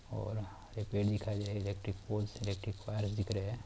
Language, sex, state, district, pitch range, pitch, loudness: Hindi, male, Bihar, Bhagalpur, 100-105 Hz, 105 Hz, -38 LUFS